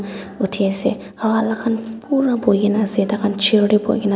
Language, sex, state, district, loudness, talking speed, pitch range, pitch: Nagamese, female, Nagaland, Dimapur, -18 LUFS, 230 wpm, 200-225 Hz, 210 Hz